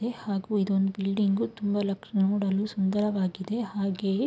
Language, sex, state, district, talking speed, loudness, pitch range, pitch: Kannada, female, Karnataka, Mysore, 110 wpm, -28 LUFS, 195-210 Hz, 200 Hz